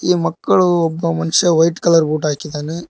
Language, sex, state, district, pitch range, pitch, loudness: Kannada, male, Karnataka, Koppal, 160-170 Hz, 165 Hz, -16 LUFS